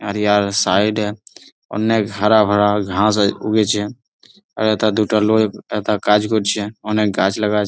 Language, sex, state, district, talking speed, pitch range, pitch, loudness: Bengali, male, West Bengal, Jalpaiguri, 170 wpm, 105-110 Hz, 105 Hz, -17 LUFS